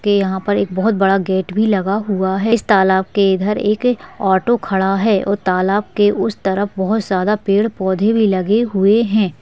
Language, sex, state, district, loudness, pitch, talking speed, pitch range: Hindi, female, Bihar, Madhepura, -16 LUFS, 200 Hz, 200 wpm, 190-210 Hz